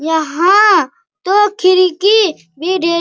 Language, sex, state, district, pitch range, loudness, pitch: Hindi, male, Bihar, Bhagalpur, 335-410 Hz, -12 LUFS, 370 Hz